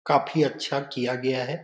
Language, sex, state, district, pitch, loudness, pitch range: Hindi, male, Bihar, Saran, 140 Hz, -26 LUFS, 130-150 Hz